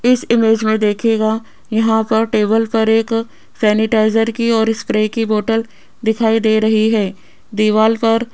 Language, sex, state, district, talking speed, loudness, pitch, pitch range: Hindi, female, Rajasthan, Jaipur, 160 wpm, -15 LUFS, 220 Hz, 220-225 Hz